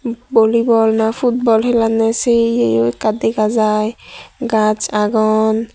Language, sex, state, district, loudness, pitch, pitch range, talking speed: Chakma, female, Tripura, Dhalai, -15 LUFS, 225 Hz, 215-230 Hz, 115 wpm